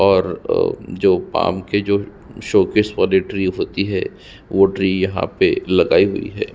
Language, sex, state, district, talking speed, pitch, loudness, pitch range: Hindi, male, Chhattisgarh, Sukma, 165 wpm, 95 Hz, -18 LUFS, 95-100 Hz